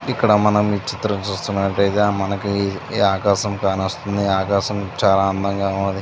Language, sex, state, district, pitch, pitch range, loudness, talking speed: Telugu, male, Andhra Pradesh, Visakhapatnam, 100 Hz, 95-105 Hz, -19 LUFS, 120 wpm